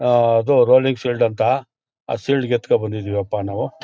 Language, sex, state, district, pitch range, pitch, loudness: Kannada, male, Karnataka, Mysore, 105-130 Hz, 120 Hz, -18 LUFS